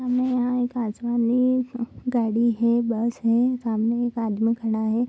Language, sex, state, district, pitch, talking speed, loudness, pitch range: Hindi, female, Bihar, Kishanganj, 235 Hz, 155 wpm, -23 LUFS, 230-245 Hz